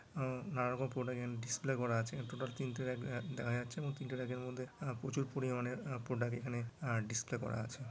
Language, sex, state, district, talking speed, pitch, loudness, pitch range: Bengali, male, West Bengal, Malda, 195 wpm, 125 Hz, -41 LUFS, 120-130 Hz